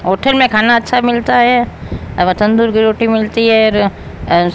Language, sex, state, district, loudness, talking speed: Hindi, male, Rajasthan, Bikaner, -12 LUFS, 170 wpm